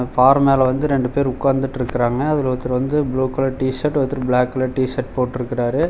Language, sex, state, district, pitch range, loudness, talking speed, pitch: Tamil, male, Tamil Nadu, Chennai, 125-135 Hz, -19 LUFS, 175 wpm, 130 Hz